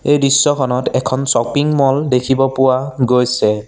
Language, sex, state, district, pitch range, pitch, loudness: Assamese, male, Assam, Sonitpur, 125-140 Hz, 130 Hz, -14 LUFS